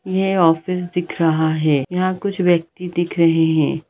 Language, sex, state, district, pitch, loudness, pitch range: Hindi, female, Bihar, Gaya, 175 Hz, -18 LUFS, 160-180 Hz